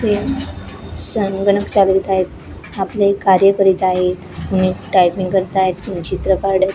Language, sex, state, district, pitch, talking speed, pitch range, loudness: Marathi, female, Maharashtra, Gondia, 190 Hz, 135 wpm, 185-195 Hz, -16 LUFS